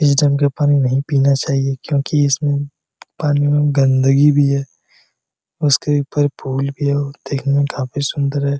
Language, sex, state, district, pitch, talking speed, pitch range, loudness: Hindi, male, Jharkhand, Jamtara, 140 Hz, 175 wpm, 140-145 Hz, -17 LUFS